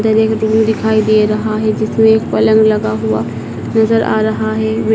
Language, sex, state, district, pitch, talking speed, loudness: Hindi, male, Madhya Pradesh, Dhar, 215 Hz, 155 wpm, -13 LUFS